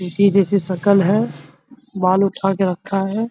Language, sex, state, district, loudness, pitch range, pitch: Hindi, male, Bihar, Samastipur, -17 LUFS, 190-200 Hz, 195 Hz